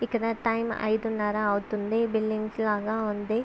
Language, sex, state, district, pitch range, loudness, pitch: Telugu, female, Andhra Pradesh, Visakhapatnam, 210-225 Hz, -28 LUFS, 215 Hz